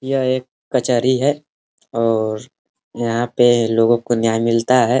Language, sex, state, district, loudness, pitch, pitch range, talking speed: Hindi, male, Uttar Pradesh, Ghazipur, -17 LUFS, 120 Hz, 115-130 Hz, 145 wpm